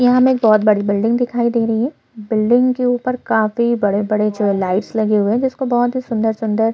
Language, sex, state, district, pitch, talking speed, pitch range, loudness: Hindi, female, Chhattisgarh, Korba, 225 Hz, 250 wpm, 215-245 Hz, -16 LUFS